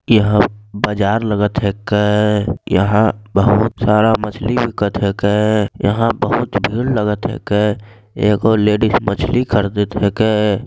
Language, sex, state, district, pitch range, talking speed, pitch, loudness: Angika, male, Bihar, Begusarai, 100-110 Hz, 110 wpm, 105 Hz, -16 LUFS